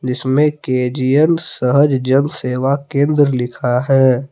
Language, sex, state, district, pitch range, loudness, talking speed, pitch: Hindi, male, Jharkhand, Palamu, 125-145 Hz, -15 LUFS, 110 wpm, 135 Hz